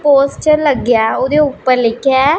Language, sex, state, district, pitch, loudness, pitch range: Hindi, male, Punjab, Pathankot, 275 Hz, -13 LUFS, 250-295 Hz